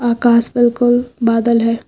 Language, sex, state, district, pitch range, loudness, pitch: Hindi, female, Uttar Pradesh, Lucknow, 230-245 Hz, -13 LUFS, 235 Hz